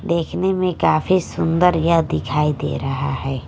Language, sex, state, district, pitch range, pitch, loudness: Hindi, female, Haryana, Charkhi Dadri, 145-180 Hz, 165 Hz, -19 LUFS